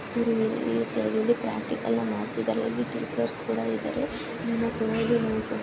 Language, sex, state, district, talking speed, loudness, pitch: Kannada, female, Karnataka, Chamarajanagar, 75 wpm, -28 LUFS, 220 Hz